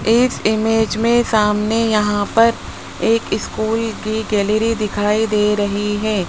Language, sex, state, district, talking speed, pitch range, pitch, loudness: Hindi, male, Rajasthan, Jaipur, 135 wpm, 210-225 Hz, 215 Hz, -17 LUFS